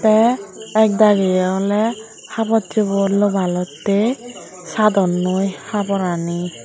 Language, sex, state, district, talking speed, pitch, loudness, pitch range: Chakma, female, Tripura, Dhalai, 65 wpm, 200 Hz, -18 LUFS, 185-220 Hz